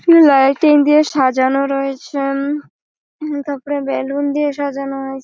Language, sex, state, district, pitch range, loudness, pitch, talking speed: Bengali, female, West Bengal, Malda, 275-295 Hz, -15 LUFS, 280 Hz, 135 wpm